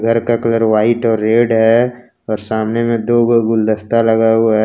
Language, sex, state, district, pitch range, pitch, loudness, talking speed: Hindi, male, Jharkhand, Ranchi, 110-115 Hz, 115 Hz, -14 LUFS, 205 wpm